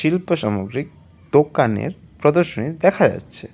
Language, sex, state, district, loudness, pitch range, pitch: Bengali, male, West Bengal, Alipurduar, -19 LUFS, 130-170 Hz, 150 Hz